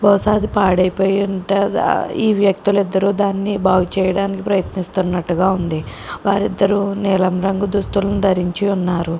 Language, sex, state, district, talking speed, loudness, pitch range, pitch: Telugu, female, Andhra Pradesh, Krishna, 115 wpm, -17 LUFS, 185-200 Hz, 195 Hz